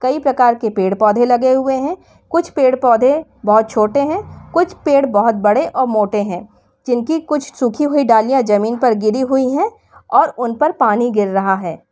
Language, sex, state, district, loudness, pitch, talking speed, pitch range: Hindi, female, Uttar Pradesh, Shamli, -15 LUFS, 245 Hz, 190 wpm, 215-280 Hz